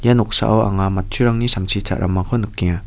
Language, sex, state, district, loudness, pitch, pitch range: Garo, male, Meghalaya, West Garo Hills, -18 LUFS, 100 Hz, 95-120 Hz